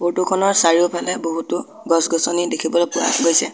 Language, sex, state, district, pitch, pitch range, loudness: Assamese, male, Assam, Sonitpur, 170 Hz, 165-175 Hz, -18 LUFS